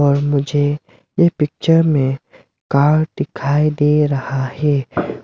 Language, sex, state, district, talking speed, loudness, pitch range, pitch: Hindi, male, Arunachal Pradesh, Lower Dibang Valley, 115 wpm, -16 LUFS, 140-150 Hz, 145 Hz